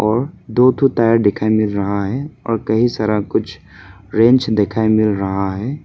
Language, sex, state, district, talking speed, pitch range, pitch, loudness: Hindi, male, Arunachal Pradesh, Papum Pare, 165 wpm, 100-120 Hz, 110 Hz, -16 LUFS